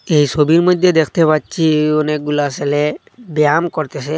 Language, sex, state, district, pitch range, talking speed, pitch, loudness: Bengali, male, Assam, Hailakandi, 150-165 Hz, 130 wpm, 155 Hz, -15 LUFS